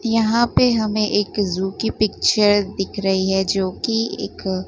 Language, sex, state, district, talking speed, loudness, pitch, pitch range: Hindi, female, Gujarat, Gandhinagar, 165 wpm, -19 LUFS, 205 Hz, 190-220 Hz